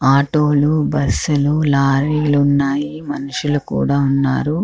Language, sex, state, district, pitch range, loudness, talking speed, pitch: Telugu, female, Andhra Pradesh, Chittoor, 140-150 Hz, -16 LUFS, 130 wpm, 145 Hz